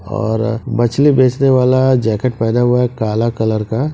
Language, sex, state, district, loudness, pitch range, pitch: Hindi, male, Jharkhand, Sahebganj, -14 LUFS, 110-130 Hz, 120 Hz